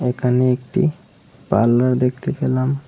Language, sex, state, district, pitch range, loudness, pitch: Bengali, male, Tripura, West Tripura, 125-130 Hz, -18 LUFS, 125 Hz